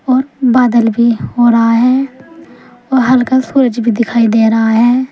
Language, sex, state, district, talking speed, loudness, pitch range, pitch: Hindi, female, Uttar Pradesh, Saharanpur, 165 wpm, -11 LUFS, 230-260 Hz, 245 Hz